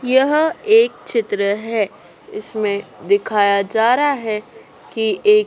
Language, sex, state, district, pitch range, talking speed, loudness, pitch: Hindi, female, Madhya Pradesh, Dhar, 210-315 Hz, 120 wpm, -17 LUFS, 230 Hz